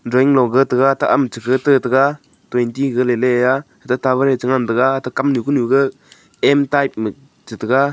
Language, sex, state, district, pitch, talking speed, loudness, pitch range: Wancho, male, Arunachal Pradesh, Longding, 130 Hz, 160 wpm, -16 LUFS, 125-140 Hz